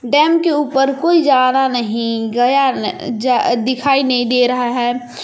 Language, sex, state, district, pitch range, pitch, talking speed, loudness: Hindi, female, Jharkhand, Palamu, 245-275 Hz, 255 Hz, 170 wpm, -15 LUFS